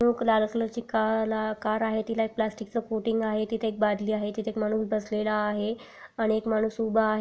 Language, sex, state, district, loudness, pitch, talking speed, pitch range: Marathi, female, Maharashtra, Sindhudurg, -28 LUFS, 220 Hz, 215 wpm, 215-225 Hz